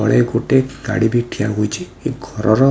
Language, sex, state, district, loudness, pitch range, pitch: Odia, male, Odisha, Khordha, -18 LUFS, 105-130 Hz, 120 Hz